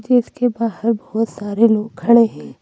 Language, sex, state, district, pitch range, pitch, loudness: Hindi, female, Madhya Pradesh, Bhopal, 215-235 Hz, 230 Hz, -17 LUFS